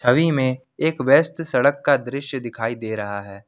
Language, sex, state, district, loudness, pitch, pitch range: Hindi, male, Jharkhand, Ranchi, -21 LUFS, 130 Hz, 115-140 Hz